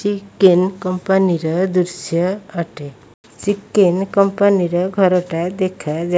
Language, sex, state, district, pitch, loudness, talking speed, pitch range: Odia, female, Odisha, Malkangiri, 185 Hz, -17 LUFS, 125 wpm, 175-195 Hz